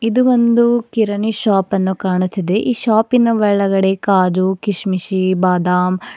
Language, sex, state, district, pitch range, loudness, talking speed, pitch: Kannada, female, Karnataka, Bidar, 185-225 Hz, -15 LUFS, 105 wpm, 200 Hz